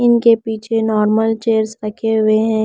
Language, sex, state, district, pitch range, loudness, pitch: Hindi, female, Punjab, Pathankot, 215-225 Hz, -16 LUFS, 220 Hz